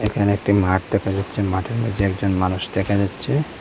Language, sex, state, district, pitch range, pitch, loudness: Bengali, male, Assam, Hailakandi, 95-105 Hz, 100 Hz, -21 LUFS